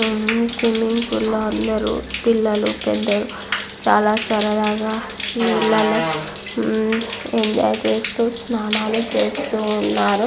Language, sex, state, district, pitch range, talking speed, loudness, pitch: Telugu, female, Andhra Pradesh, Visakhapatnam, 205-225 Hz, 75 wpm, -19 LUFS, 220 Hz